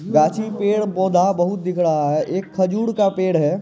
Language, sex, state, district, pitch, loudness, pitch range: Hindi, male, Bihar, Purnia, 185 Hz, -19 LUFS, 175-205 Hz